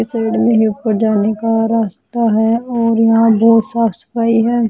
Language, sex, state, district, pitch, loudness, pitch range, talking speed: Hindi, female, Bihar, Patna, 225 Hz, -14 LUFS, 220-230 Hz, 180 wpm